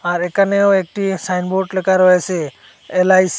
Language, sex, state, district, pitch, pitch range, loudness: Bengali, male, Assam, Hailakandi, 185 Hz, 180-190 Hz, -16 LUFS